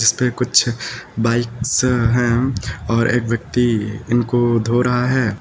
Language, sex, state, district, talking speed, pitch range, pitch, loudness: Hindi, male, Uttar Pradesh, Lucknow, 135 wpm, 115-125 Hz, 120 Hz, -18 LUFS